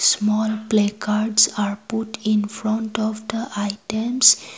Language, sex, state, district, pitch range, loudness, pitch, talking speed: English, female, Assam, Kamrup Metropolitan, 210-220 Hz, -20 LUFS, 215 Hz, 130 wpm